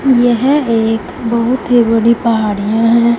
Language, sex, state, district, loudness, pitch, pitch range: Hindi, female, Punjab, Fazilka, -12 LUFS, 235 Hz, 225-240 Hz